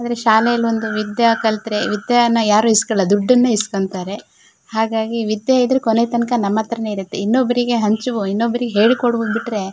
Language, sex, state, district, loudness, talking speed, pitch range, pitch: Kannada, female, Karnataka, Shimoga, -17 LUFS, 135 wpm, 215-240 Hz, 225 Hz